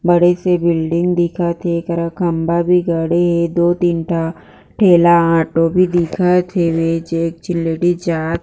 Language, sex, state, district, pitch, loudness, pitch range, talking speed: Chhattisgarhi, female, Chhattisgarh, Jashpur, 170 Hz, -15 LUFS, 165-175 Hz, 150 wpm